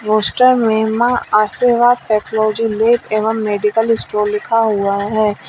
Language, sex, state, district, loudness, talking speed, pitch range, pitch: Hindi, female, Uttar Pradesh, Lalitpur, -15 LUFS, 130 wpm, 210-230 Hz, 220 Hz